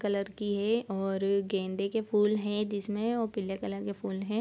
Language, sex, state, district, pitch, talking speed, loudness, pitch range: Hindi, female, Bihar, Sitamarhi, 205 Hz, 215 wpm, -31 LUFS, 195-210 Hz